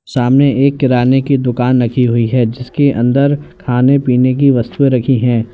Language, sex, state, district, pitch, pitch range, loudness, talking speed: Hindi, male, Uttar Pradesh, Lalitpur, 130 Hz, 125-140 Hz, -12 LUFS, 175 wpm